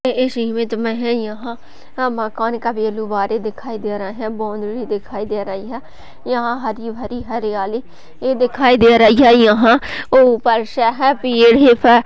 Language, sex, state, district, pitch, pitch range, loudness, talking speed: Hindi, female, Maharashtra, Sindhudurg, 230 Hz, 220-240 Hz, -16 LUFS, 155 wpm